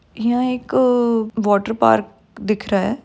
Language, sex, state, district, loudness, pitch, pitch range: Hindi, female, Uttar Pradesh, Jyotiba Phule Nagar, -18 LUFS, 220 Hz, 200-240 Hz